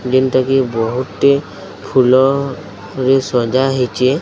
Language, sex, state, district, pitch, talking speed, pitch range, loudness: Odia, male, Odisha, Sambalpur, 130 Hz, 115 wpm, 125-135 Hz, -15 LUFS